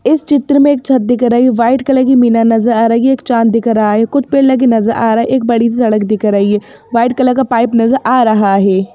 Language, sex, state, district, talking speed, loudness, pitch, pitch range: Hindi, female, Madhya Pradesh, Bhopal, 280 wpm, -11 LUFS, 235 Hz, 225-260 Hz